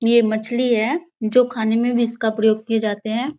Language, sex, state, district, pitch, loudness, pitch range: Hindi, female, Bihar, Bhagalpur, 230 Hz, -19 LUFS, 220-245 Hz